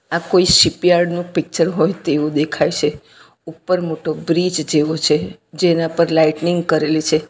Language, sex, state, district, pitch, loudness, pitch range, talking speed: Gujarati, female, Gujarat, Valsad, 160 Hz, -16 LUFS, 155-175 Hz, 155 wpm